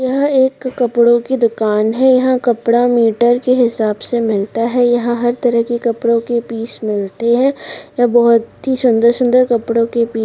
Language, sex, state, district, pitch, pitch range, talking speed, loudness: Hindi, female, Rajasthan, Churu, 240 Hz, 230-250 Hz, 170 wpm, -14 LUFS